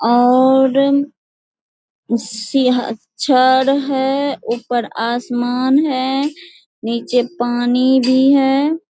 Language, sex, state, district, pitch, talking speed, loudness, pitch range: Hindi, female, Bihar, Purnia, 260 Hz, 80 wpm, -15 LUFS, 240-275 Hz